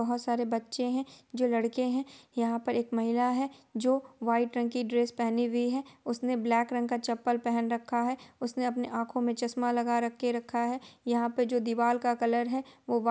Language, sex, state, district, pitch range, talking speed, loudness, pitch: Hindi, female, Bihar, Supaul, 235-250 Hz, 185 wpm, -30 LUFS, 240 Hz